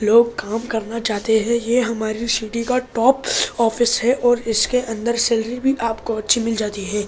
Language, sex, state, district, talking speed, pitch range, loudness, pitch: Hindi, male, Delhi, New Delhi, 195 wpm, 220-240 Hz, -19 LUFS, 230 Hz